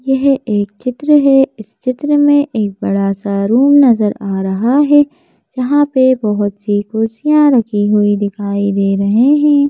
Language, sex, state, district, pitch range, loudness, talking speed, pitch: Hindi, female, Madhya Pradesh, Bhopal, 205-285 Hz, -13 LUFS, 160 wpm, 235 Hz